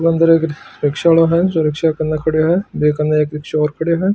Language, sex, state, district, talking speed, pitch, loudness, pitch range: Marwari, male, Rajasthan, Churu, 230 wpm, 160 Hz, -16 LUFS, 150-165 Hz